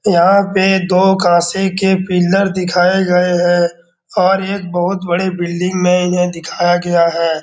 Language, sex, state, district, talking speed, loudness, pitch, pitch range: Hindi, male, Bihar, Darbhanga, 160 wpm, -14 LUFS, 180 Hz, 175-190 Hz